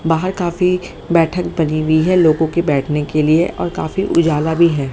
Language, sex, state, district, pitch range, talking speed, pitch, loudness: Hindi, female, Haryana, Jhajjar, 155-175 Hz, 195 wpm, 165 Hz, -16 LUFS